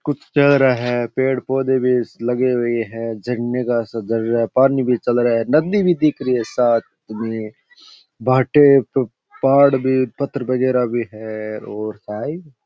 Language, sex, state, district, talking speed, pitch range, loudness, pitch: Rajasthani, male, Rajasthan, Churu, 175 wpm, 115-135 Hz, -18 LUFS, 125 Hz